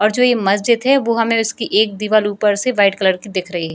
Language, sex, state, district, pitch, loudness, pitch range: Hindi, female, Bihar, Jamui, 210 Hz, -16 LUFS, 200-230 Hz